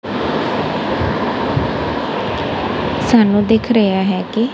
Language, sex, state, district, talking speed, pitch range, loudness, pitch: Punjabi, female, Punjab, Kapurthala, 65 wpm, 200-230 Hz, -16 LUFS, 220 Hz